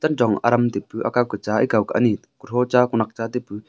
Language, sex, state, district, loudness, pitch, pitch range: Wancho, male, Arunachal Pradesh, Longding, -21 LUFS, 120 Hz, 110-125 Hz